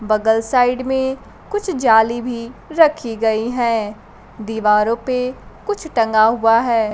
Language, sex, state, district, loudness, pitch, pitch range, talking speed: Hindi, female, Bihar, Kaimur, -17 LUFS, 235 Hz, 220-255 Hz, 130 wpm